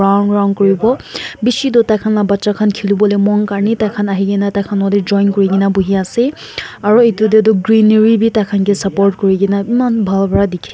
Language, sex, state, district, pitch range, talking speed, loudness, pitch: Nagamese, female, Nagaland, Kohima, 200-220 Hz, 240 wpm, -13 LUFS, 205 Hz